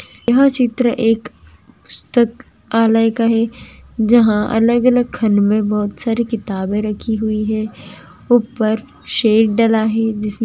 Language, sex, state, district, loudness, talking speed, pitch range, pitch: Hindi, female, Andhra Pradesh, Chittoor, -16 LUFS, 120 wpm, 215-235 Hz, 225 Hz